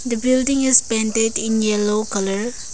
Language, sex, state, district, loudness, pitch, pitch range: English, female, Arunachal Pradesh, Lower Dibang Valley, -18 LUFS, 225 Hz, 210-250 Hz